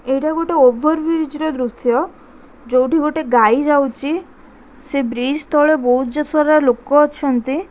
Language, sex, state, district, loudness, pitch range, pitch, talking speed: Odia, female, Odisha, Khordha, -16 LUFS, 260-310 Hz, 280 Hz, 140 wpm